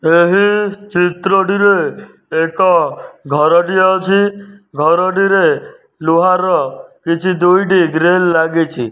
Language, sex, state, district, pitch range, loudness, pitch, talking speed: Odia, male, Odisha, Nuapada, 170-200 Hz, -13 LUFS, 185 Hz, 95 wpm